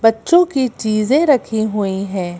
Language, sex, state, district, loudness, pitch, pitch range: Hindi, female, Madhya Pradesh, Bhopal, -16 LUFS, 220 Hz, 200-265 Hz